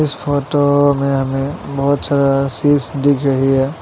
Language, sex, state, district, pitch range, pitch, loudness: Hindi, male, Assam, Sonitpur, 135-145 Hz, 140 Hz, -15 LUFS